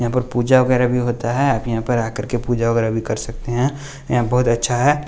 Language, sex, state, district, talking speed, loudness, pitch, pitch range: Hindi, male, Bihar, West Champaran, 260 wpm, -19 LUFS, 120 Hz, 115-125 Hz